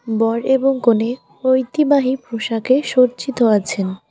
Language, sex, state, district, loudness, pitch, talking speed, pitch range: Bengali, female, West Bengal, Alipurduar, -17 LUFS, 245 Hz, 100 wpm, 225-260 Hz